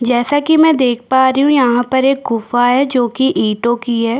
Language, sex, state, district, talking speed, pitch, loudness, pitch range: Hindi, female, Chhattisgarh, Bastar, 245 wpm, 250 Hz, -13 LUFS, 240-270 Hz